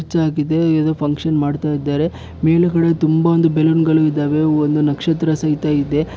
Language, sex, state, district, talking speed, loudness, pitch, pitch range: Kannada, male, Karnataka, Bellary, 145 wpm, -16 LUFS, 155 Hz, 150-160 Hz